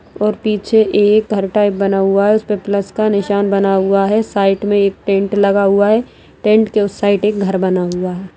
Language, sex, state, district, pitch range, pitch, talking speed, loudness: Hindi, female, Bihar, Darbhanga, 195-210 Hz, 200 Hz, 230 wpm, -14 LUFS